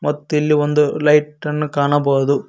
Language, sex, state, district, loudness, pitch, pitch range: Kannada, male, Karnataka, Koppal, -17 LUFS, 150 Hz, 145-150 Hz